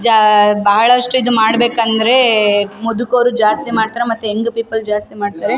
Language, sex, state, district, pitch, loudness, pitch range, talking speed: Kannada, female, Karnataka, Raichur, 225 Hz, -13 LUFS, 210-235 Hz, 130 wpm